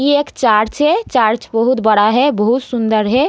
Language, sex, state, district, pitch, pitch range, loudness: Hindi, female, Uttar Pradesh, Deoria, 240 Hz, 215-280 Hz, -14 LUFS